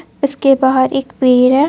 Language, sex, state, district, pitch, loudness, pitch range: Hindi, female, Jharkhand, Ranchi, 265 Hz, -13 LUFS, 260-275 Hz